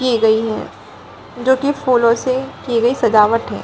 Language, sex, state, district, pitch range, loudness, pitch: Hindi, female, Bihar, Gaya, 230-255 Hz, -16 LUFS, 240 Hz